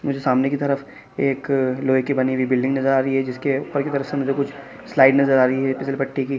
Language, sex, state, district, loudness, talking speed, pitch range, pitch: Hindi, male, Chhattisgarh, Kabirdham, -20 LUFS, 270 wpm, 130-140 Hz, 135 Hz